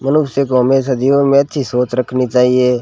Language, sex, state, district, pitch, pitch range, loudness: Hindi, male, Rajasthan, Bikaner, 130 Hz, 125-140 Hz, -14 LUFS